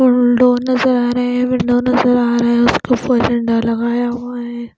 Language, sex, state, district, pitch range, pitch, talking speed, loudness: Hindi, female, Punjab, Pathankot, 240-250 Hz, 245 Hz, 225 wpm, -15 LUFS